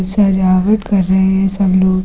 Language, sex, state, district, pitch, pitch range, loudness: Hindi, female, Uttar Pradesh, Lucknow, 190 Hz, 185-195 Hz, -12 LUFS